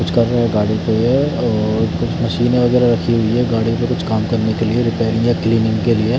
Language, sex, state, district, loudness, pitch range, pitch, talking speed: Hindi, male, Chandigarh, Chandigarh, -16 LUFS, 110-120 Hz, 115 Hz, 225 wpm